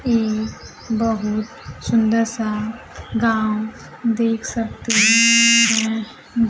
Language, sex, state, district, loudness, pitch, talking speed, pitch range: Hindi, female, Bihar, Kaimur, -18 LUFS, 225 Hz, 75 wpm, 220-230 Hz